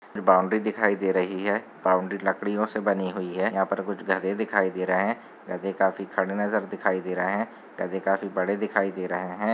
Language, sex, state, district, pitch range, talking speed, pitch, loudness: Hindi, male, Chhattisgarh, Sarguja, 95-100 Hz, 215 wpm, 95 Hz, -26 LUFS